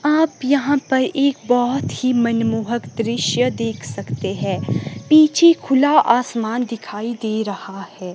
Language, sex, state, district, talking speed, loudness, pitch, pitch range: Hindi, female, Himachal Pradesh, Shimla, 135 wpm, -18 LUFS, 235 Hz, 200-275 Hz